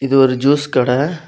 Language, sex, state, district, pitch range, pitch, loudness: Tamil, male, Tamil Nadu, Kanyakumari, 130-145 Hz, 135 Hz, -15 LUFS